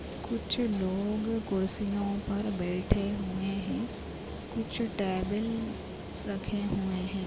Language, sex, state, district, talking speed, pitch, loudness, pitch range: Hindi, female, Chhattisgarh, Jashpur, 100 wpm, 200 Hz, -32 LUFS, 190-210 Hz